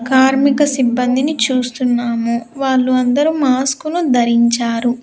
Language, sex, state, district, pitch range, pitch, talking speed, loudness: Telugu, female, Andhra Pradesh, Sri Satya Sai, 240-270 Hz, 255 Hz, 85 wpm, -15 LUFS